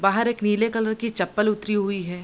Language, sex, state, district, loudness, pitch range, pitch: Hindi, female, Bihar, Darbhanga, -23 LUFS, 195-225 Hz, 210 Hz